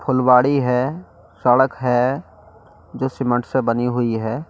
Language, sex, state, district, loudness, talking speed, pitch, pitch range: Hindi, male, Delhi, New Delhi, -19 LUFS, 135 wpm, 125 Hz, 115-130 Hz